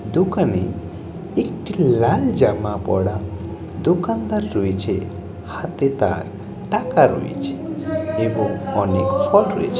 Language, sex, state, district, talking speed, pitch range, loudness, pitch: Bengali, male, West Bengal, Jalpaiguri, 85 wpm, 95-105 Hz, -20 LUFS, 100 Hz